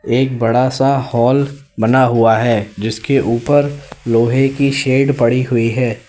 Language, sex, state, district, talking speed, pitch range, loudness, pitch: Hindi, male, Uttar Pradesh, Lalitpur, 150 wpm, 115-135 Hz, -14 LUFS, 125 Hz